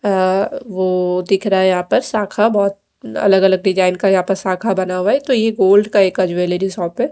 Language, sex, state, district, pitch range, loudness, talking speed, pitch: Hindi, female, Odisha, Malkangiri, 185-205 Hz, -15 LUFS, 200 wpm, 195 Hz